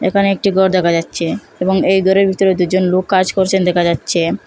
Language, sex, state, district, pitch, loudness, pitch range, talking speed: Bengali, female, Assam, Hailakandi, 185 Hz, -14 LUFS, 175-190 Hz, 200 wpm